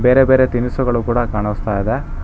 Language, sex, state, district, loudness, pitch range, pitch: Kannada, male, Karnataka, Bangalore, -16 LUFS, 110-130 Hz, 120 Hz